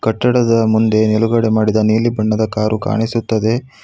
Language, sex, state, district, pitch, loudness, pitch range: Kannada, male, Karnataka, Bangalore, 110 Hz, -15 LUFS, 110-115 Hz